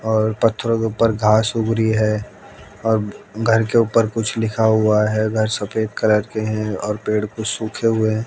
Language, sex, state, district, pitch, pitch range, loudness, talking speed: Hindi, male, Haryana, Jhajjar, 110 Hz, 105-115 Hz, -19 LUFS, 190 wpm